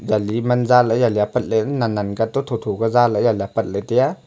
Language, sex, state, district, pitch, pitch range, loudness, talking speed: Wancho, male, Arunachal Pradesh, Longding, 115 Hz, 110-125 Hz, -19 LUFS, 265 wpm